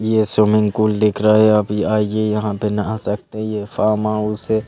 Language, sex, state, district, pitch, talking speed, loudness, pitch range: Hindi, male, Madhya Pradesh, Bhopal, 105 Hz, 220 wpm, -17 LUFS, 105-110 Hz